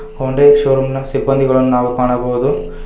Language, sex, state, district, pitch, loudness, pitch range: Kannada, male, Karnataka, Bangalore, 130 Hz, -14 LUFS, 125-135 Hz